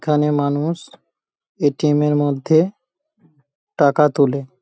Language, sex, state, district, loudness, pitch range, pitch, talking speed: Bengali, male, West Bengal, Paschim Medinipur, -18 LUFS, 145-165 Hz, 150 Hz, 90 wpm